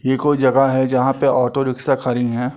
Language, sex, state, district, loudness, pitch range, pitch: Hindi, male, Uttar Pradesh, Etah, -17 LUFS, 125-135 Hz, 130 Hz